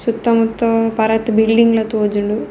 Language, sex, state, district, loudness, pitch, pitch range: Tulu, female, Karnataka, Dakshina Kannada, -15 LUFS, 225 Hz, 220-230 Hz